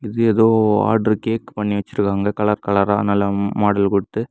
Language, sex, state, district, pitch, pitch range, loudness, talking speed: Tamil, male, Tamil Nadu, Kanyakumari, 105 Hz, 100-110 Hz, -18 LUFS, 155 wpm